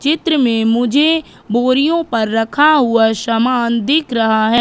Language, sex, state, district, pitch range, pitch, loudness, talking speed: Hindi, female, Madhya Pradesh, Katni, 225-295 Hz, 245 Hz, -14 LUFS, 145 wpm